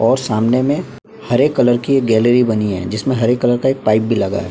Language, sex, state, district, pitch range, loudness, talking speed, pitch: Hindi, male, Maharashtra, Chandrapur, 110-130 Hz, -15 LUFS, 255 wpm, 120 Hz